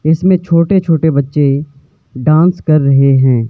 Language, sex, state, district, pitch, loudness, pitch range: Hindi, male, Himachal Pradesh, Shimla, 155 Hz, -11 LUFS, 140-165 Hz